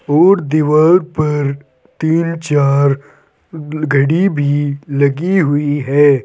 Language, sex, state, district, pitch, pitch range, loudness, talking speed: Hindi, male, Uttar Pradesh, Saharanpur, 145 Hz, 140-160 Hz, -14 LUFS, 95 wpm